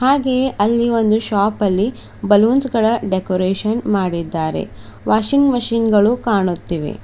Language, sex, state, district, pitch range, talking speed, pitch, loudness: Kannada, female, Karnataka, Bidar, 190-235 Hz, 110 wpm, 215 Hz, -17 LUFS